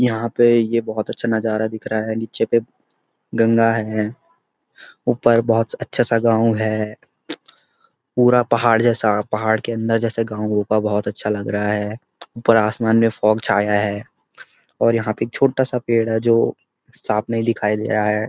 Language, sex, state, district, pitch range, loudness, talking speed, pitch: Hindi, male, Uttarakhand, Uttarkashi, 110-115 Hz, -19 LUFS, 165 wpm, 115 Hz